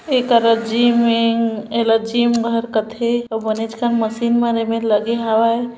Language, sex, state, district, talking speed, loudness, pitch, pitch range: Chhattisgarhi, female, Chhattisgarh, Bilaspur, 135 wpm, -17 LUFS, 230 Hz, 225-235 Hz